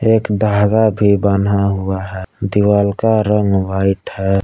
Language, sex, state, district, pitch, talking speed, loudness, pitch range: Hindi, male, Jharkhand, Palamu, 100 Hz, 150 wpm, -15 LUFS, 95-105 Hz